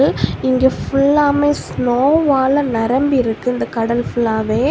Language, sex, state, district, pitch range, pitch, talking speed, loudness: Tamil, female, Tamil Nadu, Kanyakumari, 235-285 Hz, 260 Hz, 115 wpm, -16 LUFS